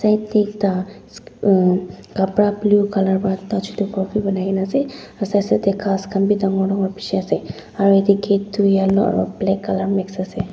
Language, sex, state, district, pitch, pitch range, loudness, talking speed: Nagamese, female, Nagaland, Dimapur, 195 Hz, 195-205 Hz, -19 LUFS, 190 wpm